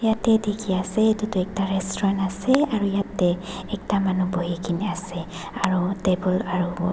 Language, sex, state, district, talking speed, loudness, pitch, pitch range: Nagamese, female, Nagaland, Dimapur, 140 wpm, -24 LUFS, 190 Hz, 185-210 Hz